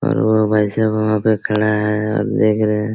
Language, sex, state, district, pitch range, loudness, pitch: Hindi, male, Chhattisgarh, Raigarh, 105-110 Hz, -17 LUFS, 110 Hz